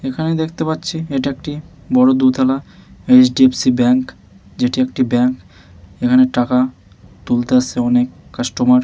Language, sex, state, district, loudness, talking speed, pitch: Bengali, male, West Bengal, Malda, -16 LUFS, 140 wpm, 130 Hz